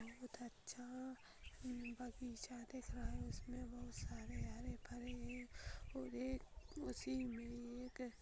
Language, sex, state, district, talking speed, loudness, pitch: Hindi, female, Jharkhand, Jamtara, 110 wpm, -51 LUFS, 225 Hz